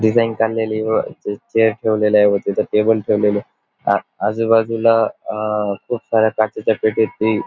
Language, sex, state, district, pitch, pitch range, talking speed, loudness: Marathi, male, Maharashtra, Dhule, 110 Hz, 105-115 Hz, 155 wpm, -18 LUFS